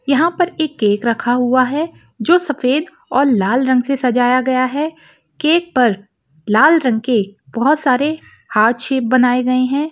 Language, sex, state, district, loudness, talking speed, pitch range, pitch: Hindi, female, Jharkhand, Sahebganj, -16 LUFS, 170 wpm, 240-300 Hz, 255 Hz